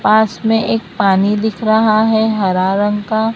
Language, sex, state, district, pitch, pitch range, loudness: Hindi, female, Maharashtra, Mumbai Suburban, 215 Hz, 200-220 Hz, -14 LUFS